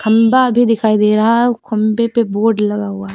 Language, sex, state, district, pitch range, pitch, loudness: Hindi, female, Uttar Pradesh, Lucknow, 210-235 Hz, 220 Hz, -14 LUFS